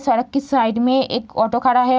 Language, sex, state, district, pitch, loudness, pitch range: Hindi, female, Bihar, Madhepura, 250 Hz, -18 LUFS, 240-260 Hz